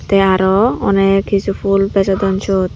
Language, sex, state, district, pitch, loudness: Chakma, female, Tripura, Dhalai, 195 Hz, -14 LUFS